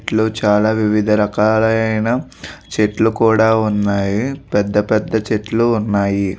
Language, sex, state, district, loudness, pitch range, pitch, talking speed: Telugu, male, Andhra Pradesh, Visakhapatnam, -16 LUFS, 105-110 Hz, 110 Hz, 105 wpm